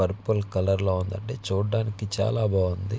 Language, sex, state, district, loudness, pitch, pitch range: Telugu, male, Andhra Pradesh, Visakhapatnam, -26 LUFS, 100 Hz, 95-110 Hz